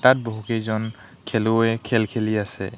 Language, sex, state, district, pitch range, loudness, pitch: Assamese, male, Assam, Hailakandi, 110-115 Hz, -23 LUFS, 110 Hz